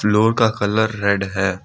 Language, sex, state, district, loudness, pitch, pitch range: Hindi, male, Assam, Kamrup Metropolitan, -18 LUFS, 105 Hz, 100-110 Hz